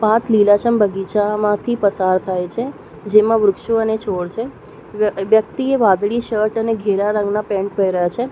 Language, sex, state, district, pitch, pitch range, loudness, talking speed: Gujarati, female, Gujarat, Valsad, 210 Hz, 195-225 Hz, -17 LUFS, 160 wpm